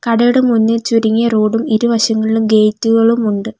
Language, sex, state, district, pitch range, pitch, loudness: Malayalam, female, Kerala, Kollam, 220-230 Hz, 225 Hz, -13 LUFS